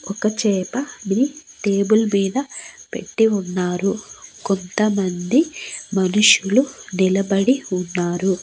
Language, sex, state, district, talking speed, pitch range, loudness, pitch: Telugu, female, Andhra Pradesh, Annamaya, 70 wpm, 190-235 Hz, -19 LUFS, 200 Hz